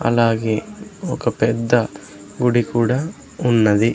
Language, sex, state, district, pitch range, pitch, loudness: Telugu, male, Andhra Pradesh, Sri Satya Sai, 110-125 Hz, 115 Hz, -19 LUFS